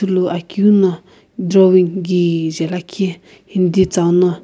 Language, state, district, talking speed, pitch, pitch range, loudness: Sumi, Nagaland, Kohima, 110 wpm, 185 Hz, 175-190 Hz, -15 LUFS